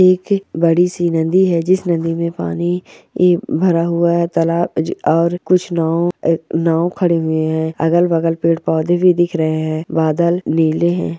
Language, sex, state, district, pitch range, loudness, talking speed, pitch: Hindi, female, Bihar, Purnia, 160-175 Hz, -16 LUFS, 165 wpm, 170 Hz